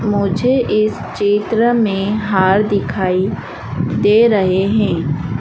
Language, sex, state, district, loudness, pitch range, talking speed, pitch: Hindi, female, Madhya Pradesh, Dhar, -15 LUFS, 190-215 Hz, 100 wpm, 205 Hz